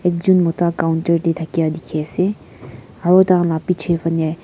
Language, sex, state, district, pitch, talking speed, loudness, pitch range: Nagamese, female, Nagaland, Kohima, 165 Hz, 160 wpm, -17 LUFS, 160-180 Hz